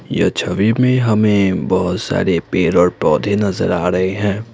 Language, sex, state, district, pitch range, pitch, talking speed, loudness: Hindi, male, Assam, Kamrup Metropolitan, 95-105 Hz, 100 Hz, 170 wpm, -16 LUFS